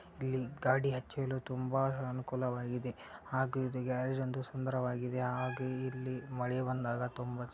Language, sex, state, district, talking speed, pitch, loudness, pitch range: Kannada, male, Karnataka, Dharwad, 95 wpm, 130 Hz, -37 LUFS, 125-130 Hz